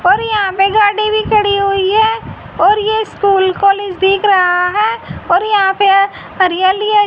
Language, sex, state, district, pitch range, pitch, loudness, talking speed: Hindi, female, Haryana, Jhajjar, 385-425 Hz, 400 Hz, -12 LUFS, 180 wpm